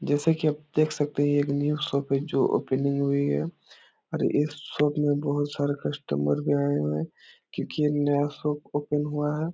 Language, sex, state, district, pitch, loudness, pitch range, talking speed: Hindi, male, Bihar, Jahanabad, 145 Hz, -26 LUFS, 140-150 Hz, 210 wpm